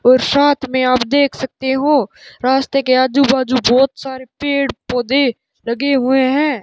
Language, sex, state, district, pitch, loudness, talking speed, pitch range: Hindi, male, Rajasthan, Bikaner, 265 Hz, -15 LUFS, 165 wpm, 255-280 Hz